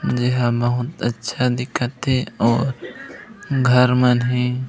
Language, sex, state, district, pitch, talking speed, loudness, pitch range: Chhattisgarhi, male, Chhattisgarh, Raigarh, 125 Hz, 115 wpm, -19 LUFS, 120-130 Hz